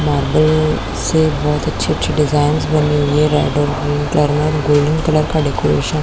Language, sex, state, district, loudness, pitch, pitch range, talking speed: Hindi, female, Chhattisgarh, Korba, -15 LUFS, 150 Hz, 145-155 Hz, 190 wpm